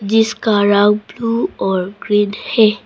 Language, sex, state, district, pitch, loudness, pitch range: Hindi, female, Arunachal Pradesh, Papum Pare, 205 Hz, -15 LUFS, 205-220 Hz